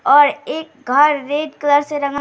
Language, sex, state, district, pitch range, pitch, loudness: Hindi, female, Bihar, Bhagalpur, 285-295 Hz, 290 Hz, -16 LUFS